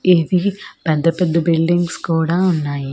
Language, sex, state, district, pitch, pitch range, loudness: Telugu, female, Andhra Pradesh, Manyam, 165 Hz, 160-180 Hz, -17 LUFS